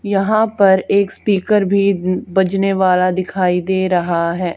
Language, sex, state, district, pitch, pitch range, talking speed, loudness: Hindi, female, Haryana, Charkhi Dadri, 190 Hz, 185-200 Hz, 145 wpm, -15 LUFS